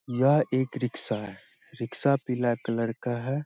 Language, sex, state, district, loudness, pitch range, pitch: Hindi, male, Bihar, Saharsa, -28 LUFS, 115-135 Hz, 125 Hz